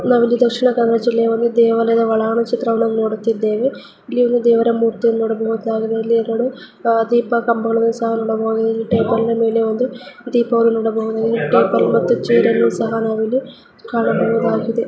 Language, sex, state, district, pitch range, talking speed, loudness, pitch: Kannada, female, Karnataka, Dakshina Kannada, 225-235 Hz, 120 wpm, -17 LUFS, 230 Hz